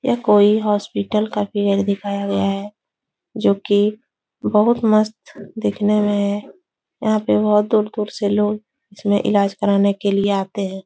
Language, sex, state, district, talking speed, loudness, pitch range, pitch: Hindi, female, Bihar, Jahanabad, 155 wpm, -18 LUFS, 200-215 Hz, 205 Hz